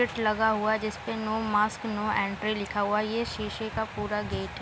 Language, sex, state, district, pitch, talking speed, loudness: Hindi, female, Bihar, Darbhanga, 210 Hz, 235 wpm, -29 LUFS